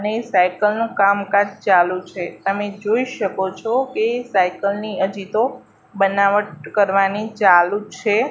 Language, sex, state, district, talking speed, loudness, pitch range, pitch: Gujarati, female, Gujarat, Gandhinagar, 135 wpm, -19 LUFS, 190-215 Hz, 200 Hz